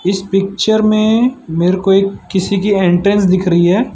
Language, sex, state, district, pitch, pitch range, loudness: Hindi, male, Gujarat, Valsad, 195 Hz, 185-205 Hz, -13 LUFS